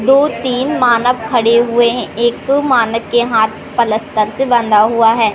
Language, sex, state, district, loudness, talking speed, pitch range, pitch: Hindi, male, Madhya Pradesh, Katni, -13 LUFS, 170 wpm, 225-250 Hz, 235 Hz